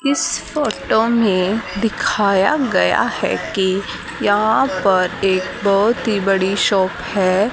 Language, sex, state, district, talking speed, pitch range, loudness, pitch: Hindi, female, Haryana, Charkhi Dadri, 120 wpm, 190-225 Hz, -17 LUFS, 200 Hz